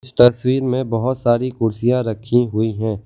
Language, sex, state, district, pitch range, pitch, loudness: Hindi, male, Gujarat, Valsad, 115-125 Hz, 120 Hz, -18 LUFS